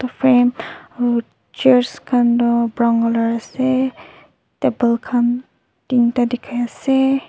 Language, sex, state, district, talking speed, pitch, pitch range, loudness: Nagamese, female, Nagaland, Dimapur, 105 wpm, 245 Hz, 235-255 Hz, -17 LUFS